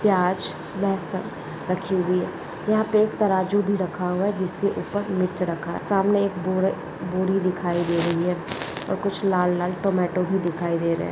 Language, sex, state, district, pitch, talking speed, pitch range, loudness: Hindi, female, Rajasthan, Nagaur, 185 Hz, 205 wpm, 180-195 Hz, -24 LUFS